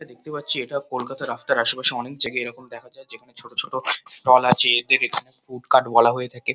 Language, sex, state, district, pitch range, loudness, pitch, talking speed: Bengali, male, West Bengal, Kolkata, 120-130 Hz, -18 LUFS, 125 Hz, 200 wpm